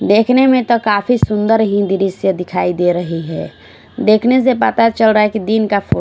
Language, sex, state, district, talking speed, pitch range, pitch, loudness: Hindi, female, Odisha, Khordha, 190 wpm, 195-230 Hz, 215 Hz, -14 LUFS